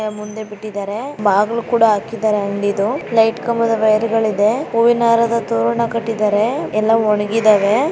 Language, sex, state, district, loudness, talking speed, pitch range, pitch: Kannada, female, Karnataka, Raichur, -16 LUFS, 135 wpm, 210-230 Hz, 220 Hz